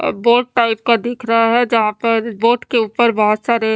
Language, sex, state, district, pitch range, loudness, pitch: Hindi, female, Haryana, Charkhi Dadri, 225-235 Hz, -15 LUFS, 230 Hz